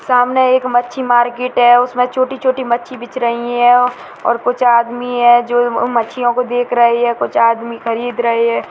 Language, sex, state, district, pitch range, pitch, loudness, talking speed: Hindi, male, Bihar, Jahanabad, 235-250 Hz, 245 Hz, -14 LUFS, 185 wpm